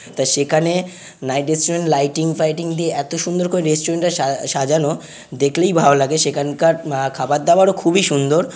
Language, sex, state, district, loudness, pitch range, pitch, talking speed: Bengali, male, West Bengal, North 24 Parganas, -17 LUFS, 140-170 Hz, 160 Hz, 145 wpm